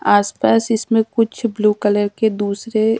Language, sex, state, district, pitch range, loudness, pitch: Hindi, female, Madhya Pradesh, Dhar, 205-225 Hz, -17 LUFS, 220 Hz